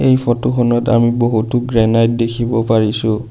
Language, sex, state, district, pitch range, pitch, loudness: Assamese, male, Assam, Sonitpur, 115-120 Hz, 115 Hz, -15 LUFS